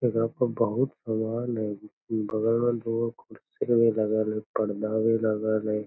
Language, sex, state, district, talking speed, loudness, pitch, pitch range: Magahi, male, Bihar, Lakhisarai, 165 wpm, -27 LUFS, 110 Hz, 110-115 Hz